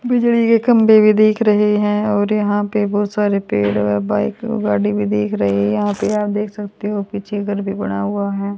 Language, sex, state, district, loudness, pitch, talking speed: Hindi, female, Haryana, Rohtak, -17 LUFS, 205 Hz, 225 wpm